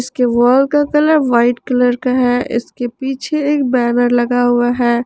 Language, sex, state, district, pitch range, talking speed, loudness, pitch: Hindi, female, Jharkhand, Ranchi, 240-265 Hz, 180 wpm, -14 LUFS, 245 Hz